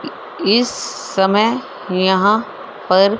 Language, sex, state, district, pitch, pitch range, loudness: Hindi, female, Haryana, Rohtak, 205 Hz, 190-230 Hz, -16 LUFS